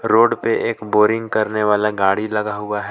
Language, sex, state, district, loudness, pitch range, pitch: Hindi, male, Jharkhand, Palamu, -18 LUFS, 105-110 Hz, 105 Hz